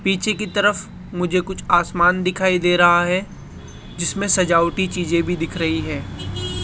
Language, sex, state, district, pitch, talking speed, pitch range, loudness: Hindi, male, Rajasthan, Jaipur, 180 Hz, 155 wpm, 170-190 Hz, -19 LUFS